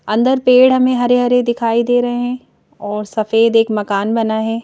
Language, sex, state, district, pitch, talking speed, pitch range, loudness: Hindi, female, Madhya Pradesh, Bhopal, 230 Hz, 195 wpm, 220-245 Hz, -14 LUFS